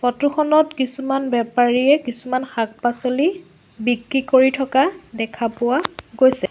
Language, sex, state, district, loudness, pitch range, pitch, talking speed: Assamese, female, Assam, Sonitpur, -19 LUFS, 240-270 Hz, 255 Hz, 110 wpm